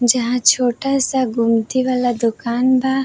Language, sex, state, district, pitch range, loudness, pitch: Bhojpuri, female, Uttar Pradesh, Varanasi, 235-260 Hz, -17 LUFS, 250 Hz